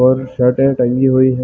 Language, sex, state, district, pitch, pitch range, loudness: Hindi, male, Chhattisgarh, Balrampur, 130 Hz, 125-130 Hz, -14 LUFS